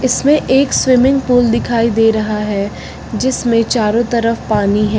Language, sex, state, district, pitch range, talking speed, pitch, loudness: Hindi, female, Uttar Pradesh, Lucknow, 215-255 Hz, 155 wpm, 230 Hz, -14 LUFS